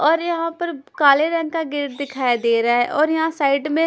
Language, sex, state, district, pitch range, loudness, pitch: Hindi, female, Punjab, Kapurthala, 275-325 Hz, -19 LUFS, 300 Hz